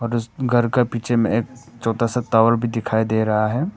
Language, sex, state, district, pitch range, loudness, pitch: Hindi, male, Arunachal Pradesh, Papum Pare, 115-120 Hz, -20 LUFS, 115 Hz